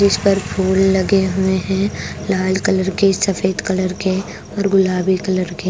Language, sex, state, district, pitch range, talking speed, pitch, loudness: Hindi, female, Punjab, Kapurthala, 185-195 Hz, 170 wpm, 190 Hz, -17 LUFS